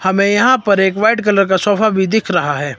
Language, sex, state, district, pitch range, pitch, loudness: Hindi, male, Himachal Pradesh, Shimla, 190-215 Hz, 200 Hz, -13 LUFS